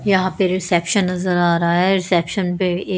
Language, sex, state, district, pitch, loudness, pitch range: Hindi, female, Haryana, Charkhi Dadri, 185 Hz, -18 LUFS, 175-190 Hz